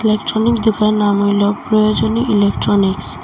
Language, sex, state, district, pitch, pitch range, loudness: Bengali, female, Assam, Hailakandi, 215 Hz, 200-220 Hz, -14 LUFS